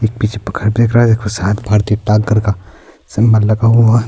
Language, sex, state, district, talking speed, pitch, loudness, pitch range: Urdu, male, Bihar, Saharsa, 160 wpm, 110 Hz, -13 LUFS, 105-115 Hz